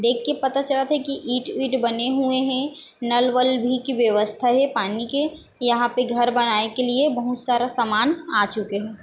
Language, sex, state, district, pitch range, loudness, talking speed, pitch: Chhattisgarhi, female, Chhattisgarh, Bilaspur, 235-270 Hz, -22 LUFS, 195 wpm, 250 Hz